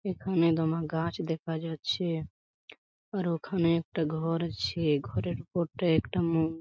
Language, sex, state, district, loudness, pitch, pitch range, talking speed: Bengali, male, West Bengal, Paschim Medinipur, -30 LUFS, 165 Hz, 160-170 Hz, 135 wpm